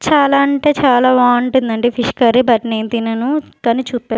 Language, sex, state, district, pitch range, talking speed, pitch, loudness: Telugu, female, Andhra Pradesh, Sri Satya Sai, 235-270 Hz, 160 wpm, 245 Hz, -14 LUFS